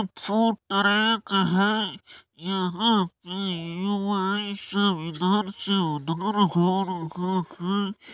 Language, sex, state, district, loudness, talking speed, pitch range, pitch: Maithili, male, Bihar, Supaul, -25 LUFS, 95 wpm, 180-205 Hz, 195 Hz